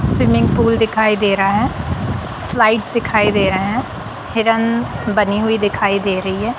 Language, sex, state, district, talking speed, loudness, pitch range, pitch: Hindi, female, Bihar, Sitamarhi, 165 wpm, -16 LUFS, 195-225 Hz, 210 Hz